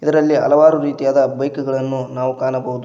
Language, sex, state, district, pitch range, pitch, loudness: Kannada, male, Karnataka, Koppal, 130-145 Hz, 135 Hz, -16 LUFS